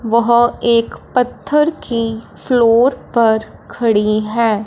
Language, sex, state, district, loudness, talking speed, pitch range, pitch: Hindi, female, Punjab, Fazilka, -15 LUFS, 105 wpm, 225-240 Hz, 235 Hz